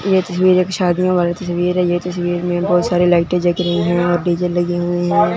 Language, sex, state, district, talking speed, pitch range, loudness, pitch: Hindi, male, Punjab, Fazilka, 235 wpm, 175-180 Hz, -16 LUFS, 175 Hz